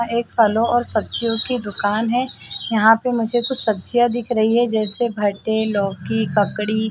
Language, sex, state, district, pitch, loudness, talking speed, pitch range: Hindi, female, Chhattisgarh, Bilaspur, 225 Hz, -17 LUFS, 155 wpm, 215-240 Hz